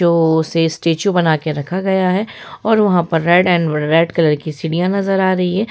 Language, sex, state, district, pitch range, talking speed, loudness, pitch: Hindi, female, Jharkhand, Sahebganj, 160-190 Hz, 220 wpm, -15 LUFS, 170 Hz